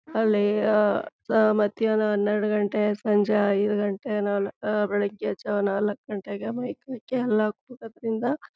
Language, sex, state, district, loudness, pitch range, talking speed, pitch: Kannada, female, Karnataka, Chamarajanagar, -25 LUFS, 205-220 Hz, 110 wpm, 210 Hz